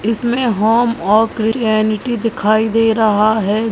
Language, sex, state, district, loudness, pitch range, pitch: Hindi, female, Chhattisgarh, Raigarh, -15 LUFS, 215-230 Hz, 220 Hz